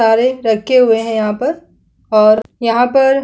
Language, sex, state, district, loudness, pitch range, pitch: Hindi, female, Chhattisgarh, Kabirdham, -13 LUFS, 220-260 Hz, 230 Hz